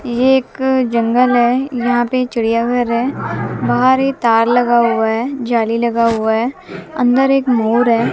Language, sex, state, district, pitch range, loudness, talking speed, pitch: Hindi, female, Haryana, Jhajjar, 230-255 Hz, -15 LUFS, 160 wpm, 240 Hz